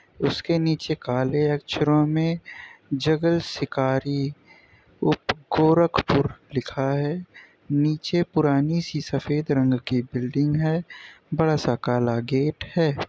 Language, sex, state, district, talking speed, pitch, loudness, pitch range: Hindi, male, Uttar Pradesh, Gorakhpur, 110 wpm, 150 Hz, -24 LUFS, 135-160 Hz